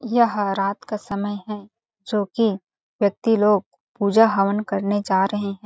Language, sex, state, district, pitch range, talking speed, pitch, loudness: Hindi, female, Chhattisgarh, Balrampur, 200-215 Hz, 150 wpm, 205 Hz, -21 LUFS